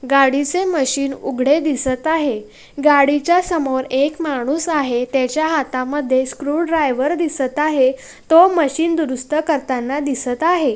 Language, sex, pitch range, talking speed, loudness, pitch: Marathi, female, 265-315 Hz, 115 wpm, -17 LUFS, 285 Hz